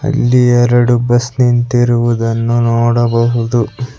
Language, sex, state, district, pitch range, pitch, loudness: Kannada, male, Karnataka, Bangalore, 120-125 Hz, 120 Hz, -12 LUFS